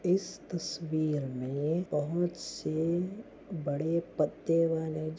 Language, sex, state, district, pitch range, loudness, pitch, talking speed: Hindi, male, Goa, North and South Goa, 155-175 Hz, -32 LUFS, 165 Hz, 105 wpm